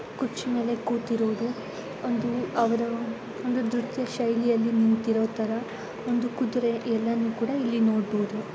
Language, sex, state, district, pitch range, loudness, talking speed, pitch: Kannada, female, Karnataka, Gulbarga, 225-240 Hz, -27 LUFS, 110 wpm, 235 Hz